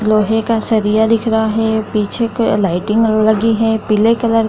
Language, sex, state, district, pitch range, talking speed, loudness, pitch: Hindi, female, Bihar, Kishanganj, 215-225 Hz, 185 wpm, -14 LUFS, 220 Hz